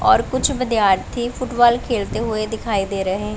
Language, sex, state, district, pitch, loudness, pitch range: Hindi, female, Punjab, Pathankot, 225 Hz, -19 LUFS, 205-240 Hz